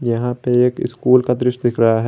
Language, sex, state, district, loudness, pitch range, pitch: Hindi, male, Jharkhand, Garhwa, -17 LUFS, 120-125 Hz, 125 Hz